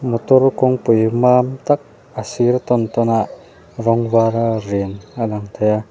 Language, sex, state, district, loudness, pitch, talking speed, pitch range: Mizo, male, Mizoram, Aizawl, -17 LUFS, 115 Hz, 170 wpm, 110-125 Hz